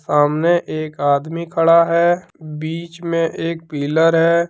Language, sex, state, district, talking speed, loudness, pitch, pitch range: Hindi, male, Jharkhand, Deoghar, 135 wpm, -17 LUFS, 165 Hz, 155-170 Hz